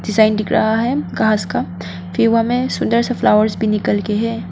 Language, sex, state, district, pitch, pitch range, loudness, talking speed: Hindi, female, Arunachal Pradesh, Papum Pare, 220 Hz, 210-230 Hz, -17 LUFS, 175 wpm